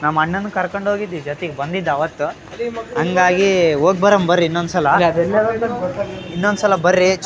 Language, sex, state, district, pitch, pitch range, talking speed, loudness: Kannada, male, Karnataka, Raichur, 185 Hz, 170-200 Hz, 125 wpm, -17 LUFS